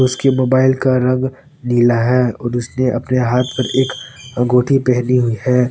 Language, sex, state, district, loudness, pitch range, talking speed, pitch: Hindi, male, Jharkhand, Palamu, -15 LUFS, 125-130 Hz, 170 wpm, 125 Hz